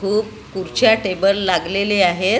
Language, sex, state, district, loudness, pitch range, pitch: Marathi, female, Maharashtra, Gondia, -17 LUFS, 185-200 Hz, 195 Hz